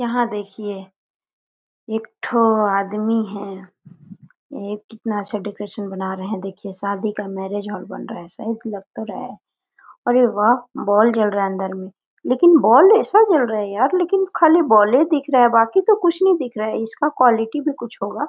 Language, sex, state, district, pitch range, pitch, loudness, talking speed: Hindi, female, Chhattisgarh, Korba, 200-260 Hz, 220 Hz, -18 LUFS, 195 wpm